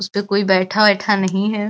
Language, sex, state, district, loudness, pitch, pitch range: Hindi, female, Uttar Pradesh, Gorakhpur, -16 LUFS, 200 Hz, 195-210 Hz